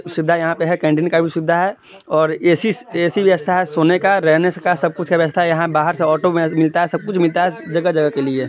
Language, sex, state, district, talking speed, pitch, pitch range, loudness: Hindi, male, Bihar, East Champaran, 235 wpm, 170 Hz, 160-180 Hz, -16 LUFS